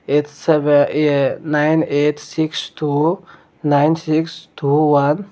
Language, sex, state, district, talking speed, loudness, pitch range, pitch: Chakma, male, Tripura, Dhalai, 125 wpm, -17 LUFS, 145-160 Hz, 150 Hz